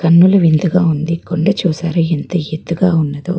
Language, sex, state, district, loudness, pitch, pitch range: Telugu, female, Andhra Pradesh, Guntur, -14 LUFS, 170 Hz, 160-180 Hz